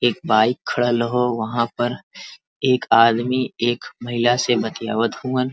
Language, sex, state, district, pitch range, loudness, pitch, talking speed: Bhojpuri, male, Uttar Pradesh, Varanasi, 115-125 Hz, -20 LUFS, 120 Hz, 140 wpm